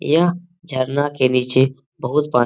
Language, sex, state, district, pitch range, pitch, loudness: Hindi, male, Bihar, Jamui, 130-155 Hz, 135 Hz, -19 LUFS